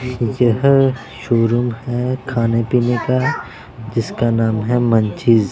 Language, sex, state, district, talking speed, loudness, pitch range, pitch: Hindi, male, Punjab, Pathankot, 110 wpm, -17 LUFS, 115-125 Hz, 120 Hz